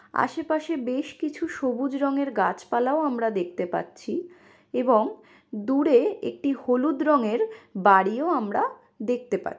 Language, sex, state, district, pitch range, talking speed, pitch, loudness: Bengali, female, West Bengal, Malda, 230-315 Hz, 115 wpm, 275 Hz, -25 LUFS